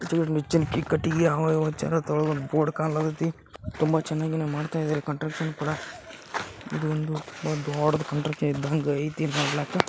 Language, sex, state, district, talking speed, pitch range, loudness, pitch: Kannada, male, Karnataka, Bijapur, 80 wpm, 150-160 Hz, -27 LUFS, 155 Hz